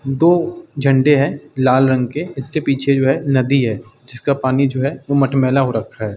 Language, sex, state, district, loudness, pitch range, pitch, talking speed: Hindi, male, Uttar Pradesh, Muzaffarnagar, -16 LUFS, 130-140 Hz, 135 Hz, 205 wpm